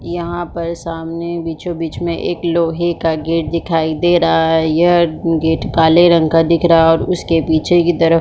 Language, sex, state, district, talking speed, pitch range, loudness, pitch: Hindi, female, Chhattisgarh, Bilaspur, 195 wpm, 165-170 Hz, -15 LUFS, 165 Hz